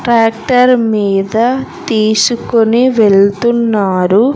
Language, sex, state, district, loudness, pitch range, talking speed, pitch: Telugu, female, Andhra Pradesh, Sri Satya Sai, -11 LUFS, 205-240 Hz, 55 wpm, 225 Hz